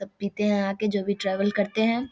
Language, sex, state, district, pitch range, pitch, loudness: Maithili, female, Bihar, Samastipur, 200-210 Hz, 205 Hz, -25 LUFS